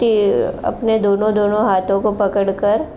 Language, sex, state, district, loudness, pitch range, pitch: Hindi, female, Uttar Pradesh, Gorakhpur, -17 LUFS, 200-215 Hz, 205 Hz